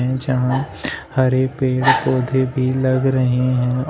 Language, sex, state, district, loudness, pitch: Hindi, male, Uttar Pradesh, Shamli, -18 LUFS, 130 Hz